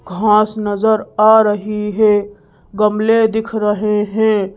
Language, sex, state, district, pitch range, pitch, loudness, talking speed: Hindi, female, Madhya Pradesh, Bhopal, 205-220 Hz, 210 Hz, -14 LUFS, 120 wpm